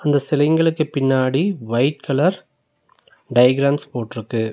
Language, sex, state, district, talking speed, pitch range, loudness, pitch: Tamil, male, Tamil Nadu, Nilgiris, 95 wpm, 125-150 Hz, -19 LUFS, 140 Hz